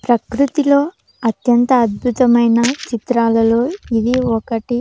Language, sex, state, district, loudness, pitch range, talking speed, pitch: Telugu, female, Andhra Pradesh, Sri Satya Sai, -15 LUFS, 230-255 Hz, 75 wpm, 240 Hz